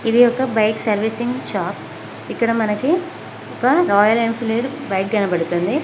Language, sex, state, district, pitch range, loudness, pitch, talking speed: Telugu, female, Telangana, Mahabubabad, 210-250 Hz, -18 LUFS, 230 Hz, 135 wpm